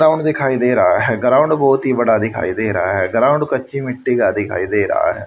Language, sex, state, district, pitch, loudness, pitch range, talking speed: Hindi, male, Haryana, Rohtak, 130 Hz, -16 LUFS, 125-140 Hz, 225 wpm